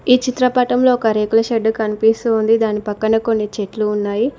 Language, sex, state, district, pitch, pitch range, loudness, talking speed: Telugu, female, Telangana, Mahabubabad, 225 Hz, 215-240 Hz, -16 LUFS, 150 wpm